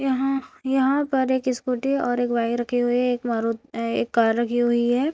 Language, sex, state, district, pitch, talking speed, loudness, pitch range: Hindi, female, Uttarakhand, Tehri Garhwal, 245 Hz, 210 wpm, -23 LUFS, 235-265 Hz